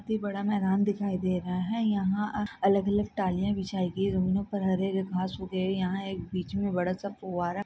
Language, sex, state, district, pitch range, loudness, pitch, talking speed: Hindi, female, Maharashtra, Sindhudurg, 185-200 Hz, -29 LUFS, 195 Hz, 205 wpm